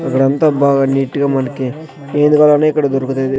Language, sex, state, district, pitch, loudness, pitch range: Telugu, male, Andhra Pradesh, Sri Satya Sai, 140 Hz, -14 LUFS, 135-150 Hz